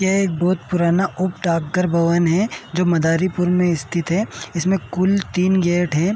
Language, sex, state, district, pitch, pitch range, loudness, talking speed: Hindi, male, Uttar Pradesh, Jalaun, 180 Hz, 170-185 Hz, -19 LUFS, 155 wpm